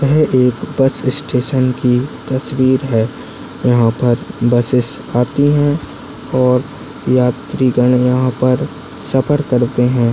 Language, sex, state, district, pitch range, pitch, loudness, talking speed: Hindi, male, Maharashtra, Aurangabad, 125-135 Hz, 125 Hz, -15 LUFS, 110 wpm